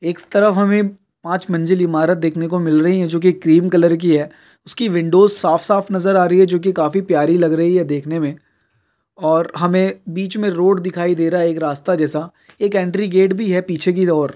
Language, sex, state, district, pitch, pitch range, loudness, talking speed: Hindi, male, Bihar, Kishanganj, 175 Hz, 165-190 Hz, -16 LUFS, 215 wpm